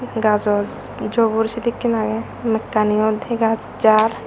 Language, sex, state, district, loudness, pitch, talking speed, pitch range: Chakma, female, Tripura, Unakoti, -19 LUFS, 220 Hz, 100 wpm, 215-230 Hz